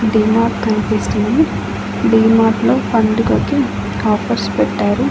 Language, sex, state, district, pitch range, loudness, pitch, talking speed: Telugu, female, Andhra Pradesh, Annamaya, 210-225 Hz, -15 LUFS, 220 Hz, 80 wpm